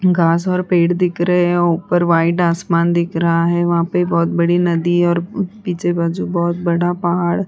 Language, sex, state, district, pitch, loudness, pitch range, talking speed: Hindi, female, Uttar Pradesh, Hamirpur, 175 Hz, -16 LUFS, 170-175 Hz, 190 wpm